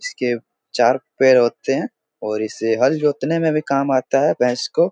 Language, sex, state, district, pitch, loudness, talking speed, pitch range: Hindi, male, Bihar, Jahanabad, 130 Hz, -18 LUFS, 195 wpm, 120-155 Hz